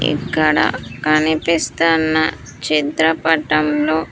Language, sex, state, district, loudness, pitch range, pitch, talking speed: Telugu, female, Andhra Pradesh, Sri Satya Sai, -16 LUFS, 150-160 Hz, 155 Hz, 45 wpm